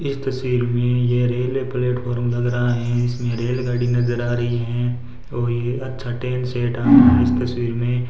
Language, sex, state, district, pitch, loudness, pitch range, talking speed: Hindi, male, Rajasthan, Bikaner, 120 Hz, -20 LUFS, 120-125 Hz, 190 wpm